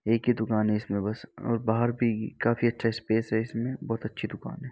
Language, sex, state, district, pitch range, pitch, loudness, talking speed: Hindi, male, Uttar Pradesh, Varanasi, 110-120 Hz, 115 Hz, -28 LUFS, 230 wpm